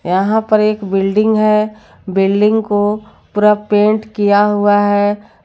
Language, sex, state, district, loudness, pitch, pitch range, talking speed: Hindi, female, Jharkhand, Garhwa, -14 LUFS, 210 Hz, 205-215 Hz, 130 wpm